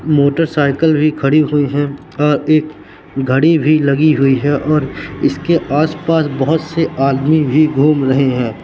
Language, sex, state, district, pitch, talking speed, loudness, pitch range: Hindi, male, Madhya Pradesh, Katni, 150 Hz, 155 wpm, -14 LUFS, 140-155 Hz